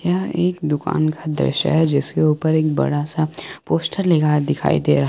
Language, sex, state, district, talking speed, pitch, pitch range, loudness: Hindi, male, Jharkhand, Garhwa, 190 wpm, 155 Hz, 145-160 Hz, -19 LUFS